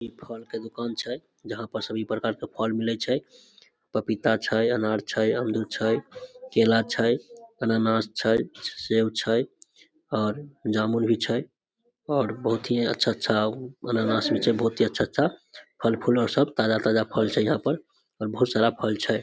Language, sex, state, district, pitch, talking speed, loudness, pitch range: Maithili, male, Bihar, Samastipur, 115 Hz, 155 wpm, -26 LUFS, 110-125 Hz